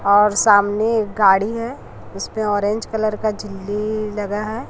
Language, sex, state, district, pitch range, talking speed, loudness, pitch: Hindi, female, Chhattisgarh, Raipur, 205-220 Hz, 140 wpm, -19 LUFS, 210 Hz